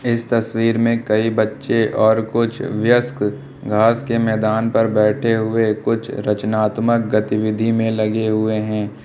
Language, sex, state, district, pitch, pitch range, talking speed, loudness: Hindi, male, Uttar Pradesh, Lucknow, 110 Hz, 110-115 Hz, 140 wpm, -18 LUFS